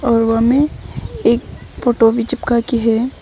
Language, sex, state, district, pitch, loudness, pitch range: Hindi, female, Arunachal Pradesh, Longding, 235 Hz, -15 LUFS, 230-250 Hz